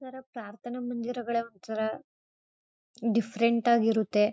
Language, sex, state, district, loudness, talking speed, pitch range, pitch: Kannada, female, Karnataka, Mysore, -29 LUFS, 85 wpm, 220-240 Hz, 230 Hz